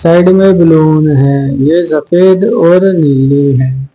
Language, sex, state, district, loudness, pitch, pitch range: Hindi, male, Haryana, Charkhi Dadri, -8 LUFS, 155 Hz, 140-175 Hz